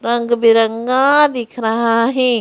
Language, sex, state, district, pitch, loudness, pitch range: Hindi, female, Madhya Pradesh, Bhopal, 235 Hz, -14 LUFS, 230-250 Hz